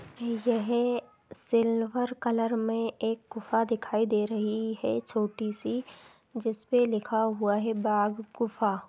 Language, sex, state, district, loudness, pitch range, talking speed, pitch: Hindi, female, Chhattisgarh, Kabirdham, -29 LUFS, 215-235 Hz, 120 wpm, 225 Hz